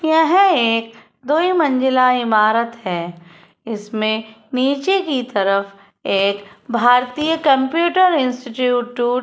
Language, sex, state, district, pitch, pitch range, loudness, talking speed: Hindi, female, Uttar Pradesh, Etah, 245 Hz, 215-285 Hz, -17 LUFS, 105 wpm